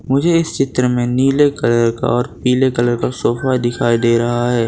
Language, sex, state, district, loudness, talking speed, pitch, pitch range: Hindi, male, Gujarat, Valsad, -15 LUFS, 205 wpm, 125 Hz, 120-135 Hz